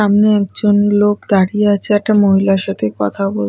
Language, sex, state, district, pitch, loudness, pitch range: Bengali, female, Odisha, Malkangiri, 205 Hz, -14 LUFS, 190-205 Hz